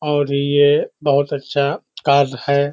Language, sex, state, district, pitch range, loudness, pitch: Hindi, male, Uttar Pradesh, Hamirpur, 140-145 Hz, -17 LUFS, 140 Hz